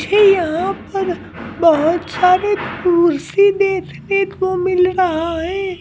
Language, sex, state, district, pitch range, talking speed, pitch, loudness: Hindi, male, Bihar, Patna, 340-390 Hz, 115 wpm, 370 Hz, -16 LUFS